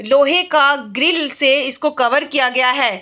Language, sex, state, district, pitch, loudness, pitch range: Hindi, female, Bihar, Bhagalpur, 280 Hz, -14 LUFS, 255-300 Hz